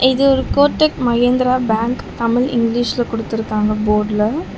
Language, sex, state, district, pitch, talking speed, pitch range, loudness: Tamil, female, Tamil Nadu, Chennai, 240 Hz, 130 wpm, 225-255 Hz, -16 LUFS